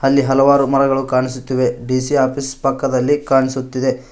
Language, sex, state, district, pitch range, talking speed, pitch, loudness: Kannada, male, Karnataka, Koppal, 130-135 Hz, 115 wpm, 135 Hz, -16 LUFS